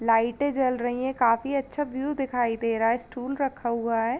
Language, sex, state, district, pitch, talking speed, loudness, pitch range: Hindi, female, Uttar Pradesh, Jalaun, 245 Hz, 215 wpm, -26 LUFS, 230-270 Hz